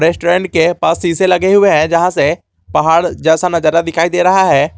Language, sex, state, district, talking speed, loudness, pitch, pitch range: Hindi, male, Jharkhand, Garhwa, 200 wpm, -12 LUFS, 170 Hz, 160-180 Hz